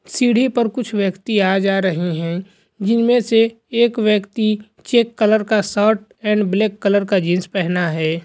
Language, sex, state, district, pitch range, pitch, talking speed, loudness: Hindi, male, Jharkhand, Jamtara, 190-225 Hz, 210 Hz, 165 wpm, -17 LUFS